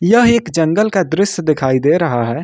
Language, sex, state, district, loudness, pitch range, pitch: Hindi, male, Jharkhand, Ranchi, -14 LUFS, 150-200 Hz, 170 Hz